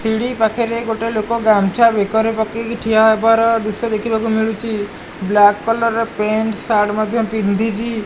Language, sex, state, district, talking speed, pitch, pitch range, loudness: Odia, male, Odisha, Malkangiri, 140 wpm, 220 Hz, 215-230 Hz, -16 LUFS